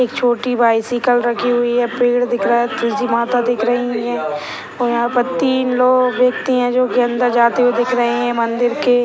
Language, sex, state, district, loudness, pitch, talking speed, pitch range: Hindi, male, Bihar, Purnia, -16 LUFS, 245 Hz, 200 wpm, 240-250 Hz